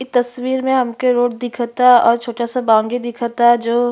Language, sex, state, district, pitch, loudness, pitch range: Bhojpuri, female, Uttar Pradesh, Ghazipur, 245 Hz, -16 LUFS, 235-250 Hz